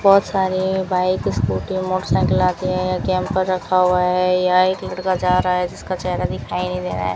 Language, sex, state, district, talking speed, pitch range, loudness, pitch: Hindi, female, Rajasthan, Bikaner, 200 wpm, 180-185 Hz, -19 LUFS, 185 Hz